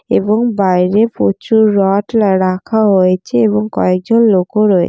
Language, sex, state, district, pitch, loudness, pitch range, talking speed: Bengali, female, West Bengal, Jalpaiguri, 205 Hz, -12 LUFS, 185-220 Hz, 125 wpm